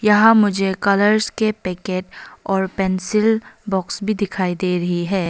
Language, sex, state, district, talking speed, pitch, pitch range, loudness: Hindi, female, Arunachal Pradesh, Longding, 145 wpm, 195 Hz, 185-215 Hz, -19 LUFS